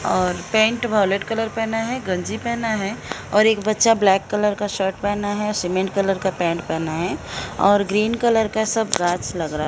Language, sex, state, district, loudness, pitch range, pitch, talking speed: Hindi, female, Odisha, Sambalpur, -20 LUFS, 190-220 Hz, 205 Hz, 205 wpm